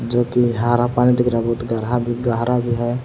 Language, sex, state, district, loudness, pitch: Hindi, male, Jharkhand, Palamu, -19 LUFS, 120 Hz